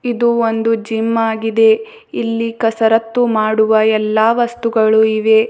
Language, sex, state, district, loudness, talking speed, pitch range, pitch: Kannada, female, Karnataka, Bidar, -14 LUFS, 110 wpm, 220-235 Hz, 225 Hz